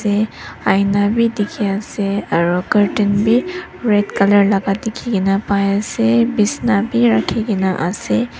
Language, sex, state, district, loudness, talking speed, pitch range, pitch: Nagamese, female, Nagaland, Dimapur, -16 LUFS, 130 wpm, 195-225 Hz, 205 Hz